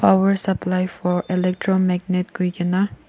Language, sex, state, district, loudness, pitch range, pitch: Nagamese, female, Nagaland, Kohima, -21 LUFS, 180-190 Hz, 185 Hz